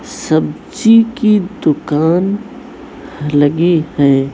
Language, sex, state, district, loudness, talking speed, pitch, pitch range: Hindi, female, Chhattisgarh, Raipur, -13 LUFS, 70 wpm, 175 Hz, 150-230 Hz